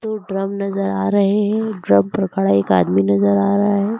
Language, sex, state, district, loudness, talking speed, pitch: Hindi, female, Uttar Pradesh, Lucknow, -17 LUFS, 225 wpm, 195 Hz